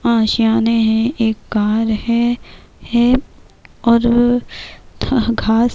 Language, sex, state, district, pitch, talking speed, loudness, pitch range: Urdu, female, Bihar, Kishanganj, 235 Hz, 95 wpm, -16 LUFS, 225-240 Hz